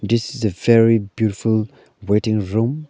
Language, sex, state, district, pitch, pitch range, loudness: English, male, Arunachal Pradesh, Lower Dibang Valley, 110 Hz, 105-115 Hz, -18 LUFS